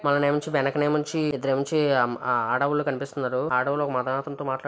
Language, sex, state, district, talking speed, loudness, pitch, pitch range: Telugu, male, Andhra Pradesh, Visakhapatnam, 155 wpm, -25 LUFS, 140 Hz, 135-145 Hz